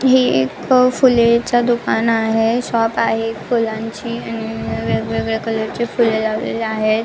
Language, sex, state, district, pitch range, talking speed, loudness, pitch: Marathi, female, Maharashtra, Nagpur, 220-235 Hz, 135 wpm, -17 LUFS, 225 Hz